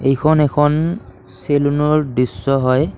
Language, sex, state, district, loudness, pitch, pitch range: Assamese, male, Assam, Kamrup Metropolitan, -16 LUFS, 145 Hz, 135-150 Hz